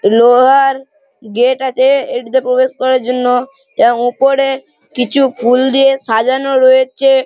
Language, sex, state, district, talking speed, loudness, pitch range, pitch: Bengali, male, West Bengal, Malda, 105 wpm, -11 LUFS, 250-270 Hz, 260 Hz